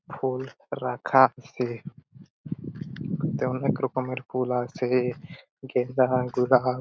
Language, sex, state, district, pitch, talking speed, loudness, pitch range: Bengali, male, West Bengal, Purulia, 130 Hz, 90 wpm, -26 LUFS, 125-150 Hz